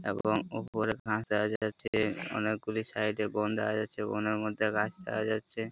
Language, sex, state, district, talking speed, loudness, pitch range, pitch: Bengali, male, West Bengal, Purulia, 170 wpm, -32 LUFS, 105-110 Hz, 110 Hz